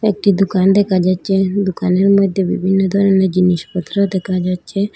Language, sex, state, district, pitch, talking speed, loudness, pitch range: Bengali, female, Assam, Hailakandi, 190 Hz, 135 wpm, -15 LUFS, 185-200 Hz